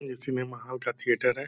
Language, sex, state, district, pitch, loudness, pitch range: Hindi, male, Bihar, Purnia, 130 Hz, -30 LUFS, 125-130 Hz